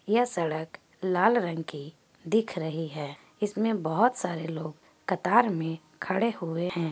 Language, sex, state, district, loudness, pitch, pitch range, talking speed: Hindi, female, Bihar, Gaya, -28 LUFS, 175 Hz, 160-210 Hz, 145 wpm